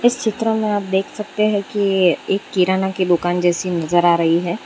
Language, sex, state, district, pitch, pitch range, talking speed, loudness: Hindi, female, Gujarat, Valsad, 190 Hz, 175-205 Hz, 230 wpm, -18 LUFS